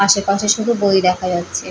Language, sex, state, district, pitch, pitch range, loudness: Bengali, female, West Bengal, Paschim Medinipur, 195 Hz, 185-205 Hz, -16 LUFS